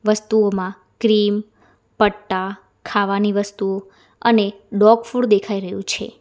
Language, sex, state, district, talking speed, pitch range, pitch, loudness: Gujarati, female, Gujarat, Valsad, 105 wpm, 195-215 Hz, 205 Hz, -19 LUFS